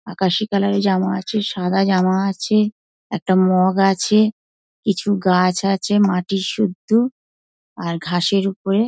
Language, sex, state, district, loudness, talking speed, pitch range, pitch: Bengali, female, West Bengal, Dakshin Dinajpur, -18 LUFS, 135 wpm, 185-205 Hz, 195 Hz